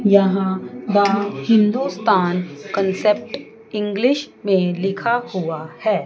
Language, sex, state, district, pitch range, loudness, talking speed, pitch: Hindi, female, Chandigarh, Chandigarh, 190-215 Hz, -19 LUFS, 90 wpm, 200 Hz